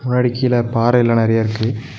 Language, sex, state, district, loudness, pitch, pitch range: Tamil, male, Tamil Nadu, Nilgiris, -16 LUFS, 120 Hz, 115-125 Hz